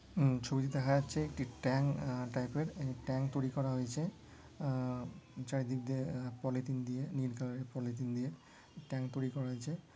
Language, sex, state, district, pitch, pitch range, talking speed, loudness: Bengali, male, West Bengal, Dakshin Dinajpur, 130 Hz, 125-140 Hz, 155 wpm, -38 LUFS